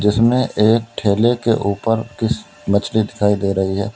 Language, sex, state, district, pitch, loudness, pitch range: Hindi, male, Uttar Pradesh, Lalitpur, 110 Hz, -17 LUFS, 100-115 Hz